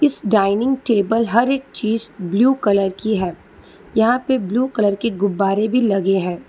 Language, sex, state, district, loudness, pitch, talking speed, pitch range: Hindi, female, Telangana, Hyderabad, -18 LUFS, 215 Hz, 175 wpm, 195-240 Hz